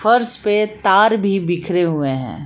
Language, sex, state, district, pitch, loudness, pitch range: Hindi, female, Jharkhand, Palamu, 195 Hz, -17 LUFS, 170-215 Hz